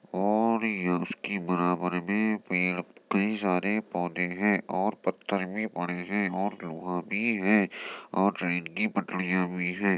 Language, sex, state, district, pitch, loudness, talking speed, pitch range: Hindi, male, Uttar Pradesh, Jyotiba Phule Nagar, 95 Hz, -29 LUFS, 150 wpm, 90-105 Hz